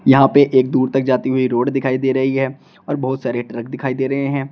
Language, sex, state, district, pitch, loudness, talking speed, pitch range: Hindi, male, Uttar Pradesh, Shamli, 130 Hz, -17 LUFS, 265 wpm, 130-135 Hz